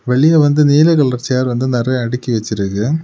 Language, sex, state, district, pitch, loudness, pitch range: Tamil, male, Tamil Nadu, Kanyakumari, 130 Hz, -14 LUFS, 120-150 Hz